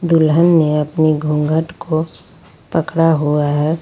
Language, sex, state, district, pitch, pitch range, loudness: Hindi, female, Jharkhand, Ranchi, 155 Hz, 150-165 Hz, -15 LUFS